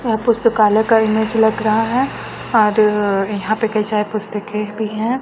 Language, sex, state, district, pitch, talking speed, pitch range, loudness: Hindi, female, Chhattisgarh, Raipur, 215 Hz, 170 wpm, 210-225 Hz, -17 LUFS